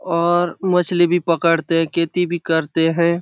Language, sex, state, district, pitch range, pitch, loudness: Hindi, male, Chhattisgarh, Bastar, 165-175 Hz, 170 Hz, -18 LUFS